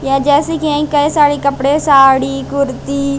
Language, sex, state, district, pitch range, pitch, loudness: Hindi, female, Madhya Pradesh, Katni, 275-295 Hz, 280 Hz, -12 LUFS